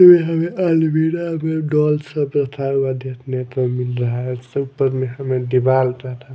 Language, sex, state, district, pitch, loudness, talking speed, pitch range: Hindi, male, Odisha, Malkangiri, 135 Hz, -19 LUFS, 150 wpm, 130-155 Hz